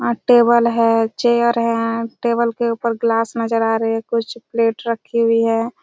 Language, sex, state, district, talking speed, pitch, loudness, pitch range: Hindi, female, Chhattisgarh, Raigarh, 185 wpm, 230 Hz, -17 LUFS, 230-235 Hz